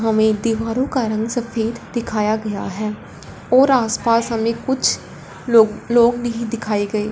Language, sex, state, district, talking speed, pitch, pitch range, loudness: Hindi, female, Punjab, Fazilka, 150 wpm, 225 Hz, 215-235 Hz, -19 LUFS